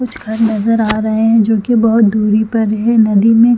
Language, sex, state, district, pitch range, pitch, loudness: Hindi, female, Chhattisgarh, Bilaspur, 215-230 Hz, 220 Hz, -12 LUFS